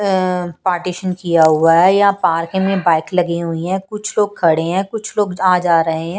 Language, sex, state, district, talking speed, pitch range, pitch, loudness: Hindi, female, Punjab, Pathankot, 215 wpm, 170-195 Hz, 180 Hz, -16 LUFS